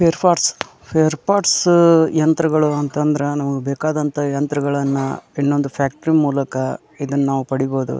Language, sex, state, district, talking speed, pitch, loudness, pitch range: Kannada, male, Karnataka, Dharwad, 120 wpm, 145 Hz, -18 LUFS, 140-160 Hz